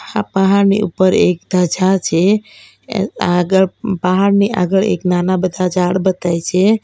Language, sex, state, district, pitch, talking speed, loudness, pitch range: Gujarati, female, Gujarat, Valsad, 185 Hz, 140 wpm, -15 LUFS, 180-195 Hz